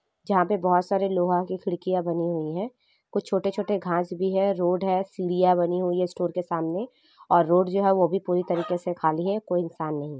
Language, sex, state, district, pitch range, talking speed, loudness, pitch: Hindi, female, Jharkhand, Sahebganj, 175-195 Hz, 235 wpm, -25 LUFS, 180 Hz